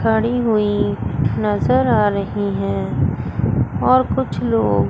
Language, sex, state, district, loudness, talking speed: Hindi, female, Chandigarh, Chandigarh, -18 LUFS, 110 wpm